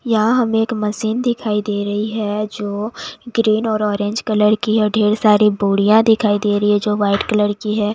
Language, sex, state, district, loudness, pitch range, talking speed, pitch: Hindi, female, Bihar, West Champaran, -17 LUFS, 210-220 Hz, 205 wpm, 210 Hz